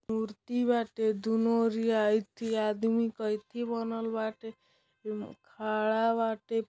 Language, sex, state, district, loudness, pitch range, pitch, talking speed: Bhojpuri, male, Uttar Pradesh, Deoria, -31 LUFS, 215-230 Hz, 225 Hz, 115 wpm